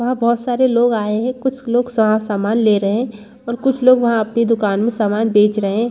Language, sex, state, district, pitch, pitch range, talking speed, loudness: Hindi, female, Chhattisgarh, Rajnandgaon, 230 Hz, 215-245 Hz, 235 wpm, -16 LUFS